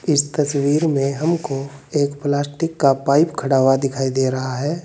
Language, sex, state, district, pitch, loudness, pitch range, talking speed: Hindi, male, Uttar Pradesh, Saharanpur, 140 Hz, -19 LUFS, 135-150 Hz, 175 wpm